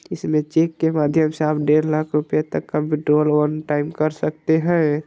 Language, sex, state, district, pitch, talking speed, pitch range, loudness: Hindi, male, Bihar, Vaishali, 155 Hz, 200 wpm, 150-155 Hz, -20 LUFS